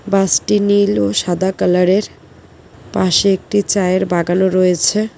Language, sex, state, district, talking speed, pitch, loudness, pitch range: Bengali, female, West Bengal, Cooch Behar, 140 wpm, 190 Hz, -15 LUFS, 180-200 Hz